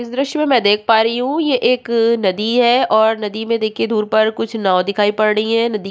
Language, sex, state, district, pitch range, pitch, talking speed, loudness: Hindi, female, Uttarakhand, Tehri Garhwal, 215-240 Hz, 225 Hz, 275 wpm, -16 LUFS